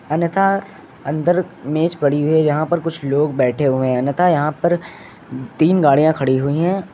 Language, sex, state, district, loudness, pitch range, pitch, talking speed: Hindi, male, Uttar Pradesh, Lucknow, -17 LUFS, 140-170 Hz, 155 Hz, 175 wpm